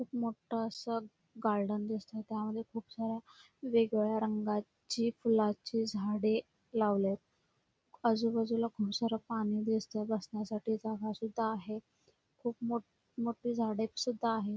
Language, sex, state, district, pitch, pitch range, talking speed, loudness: Marathi, female, Karnataka, Belgaum, 220 Hz, 215-230 Hz, 115 wpm, -35 LUFS